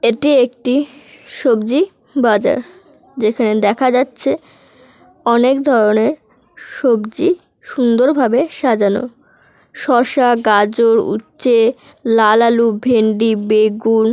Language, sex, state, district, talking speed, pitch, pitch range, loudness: Bengali, female, West Bengal, North 24 Parganas, 80 wpm, 235 Hz, 220-265 Hz, -14 LUFS